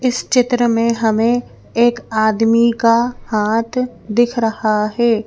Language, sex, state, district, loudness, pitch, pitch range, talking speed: Hindi, female, Madhya Pradesh, Bhopal, -16 LUFS, 230 Hz, 220-240 Hz, 125 wpm